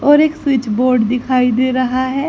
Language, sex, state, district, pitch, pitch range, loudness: Hindi, female, Haryana, Charkhi Dadri, 255 Hz, 250-275 Hz, -15 LUFS